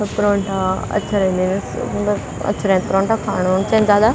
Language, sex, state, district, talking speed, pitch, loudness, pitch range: Garhwali, female, Uttarakhand, Tehri Garhwal, 160 wpm, 200 Hz, -18 LUFS, 190-210 Hz